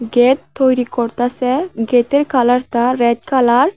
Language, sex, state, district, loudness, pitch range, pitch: Bengali, female, Tripura, West Tripura, -15 LUFS, 240-260 Hz, 250 Hz